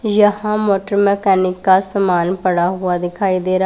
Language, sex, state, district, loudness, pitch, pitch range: Hindi, female, Punjab, Pathankot, -16 LUFS, 190 Hz, 185-200 Hz